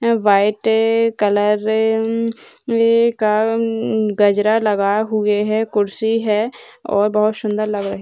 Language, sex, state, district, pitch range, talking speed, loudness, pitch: Hindi, female, Bihar, Gaya, 210-225 Hz, 110 wpm, -17 LUFS, 215 Hz